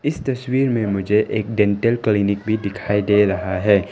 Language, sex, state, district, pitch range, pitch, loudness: Hindi, male, Arunachal Pradesh, Longding, 100-115 Hz, 105 Hz, -19 LUFS